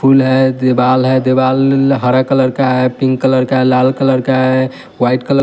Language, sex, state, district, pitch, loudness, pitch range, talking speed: Hindi, male, Bihar, West Champaran, 130 Hz, -12 LUFS, 130-135 Hz, 210 wpm